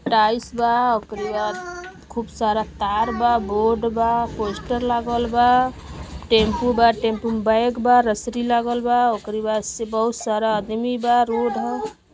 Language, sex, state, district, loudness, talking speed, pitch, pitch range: Bhojpuri, female, Uttar Pradesh, Gorakhpur, -20 LUFS, 150 wpm, 235 Hz, 220-240 Hz